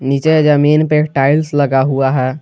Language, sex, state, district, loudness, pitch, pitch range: Hindi, male, Jharkhand, Garhwa, -13 LUFS, 145 Hz, 135-150 Hz